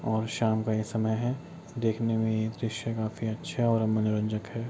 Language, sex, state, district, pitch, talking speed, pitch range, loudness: Hindi, male, Bihar, Kishanganj, 110 Hz, 190 wpm, 110-115 Hz, -29 LUFS